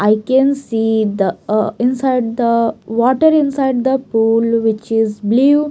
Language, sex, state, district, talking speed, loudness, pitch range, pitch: English, female, Maharashtra, Mumbai Suburban, 145 wpm, -15 LUFS, 225-265 Hz, 230 Hz